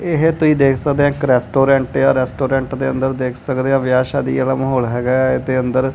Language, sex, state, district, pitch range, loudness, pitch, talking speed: Punjabi, male, Punjab, Kapurthala, 130-135 Hz, -16 LUFS, 130 Hz, 200 wpm